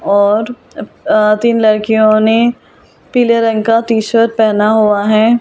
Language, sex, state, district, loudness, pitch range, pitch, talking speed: Hindi, female, Delhi, New Delhi, -11 LUFS, 215-230 Hz, 220 Hz, 145 wpm